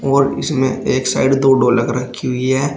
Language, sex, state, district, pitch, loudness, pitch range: Hindi, male, Uttar Pradesh, Shamli, 130 Hz, -16 LUFS, 125-135 Hz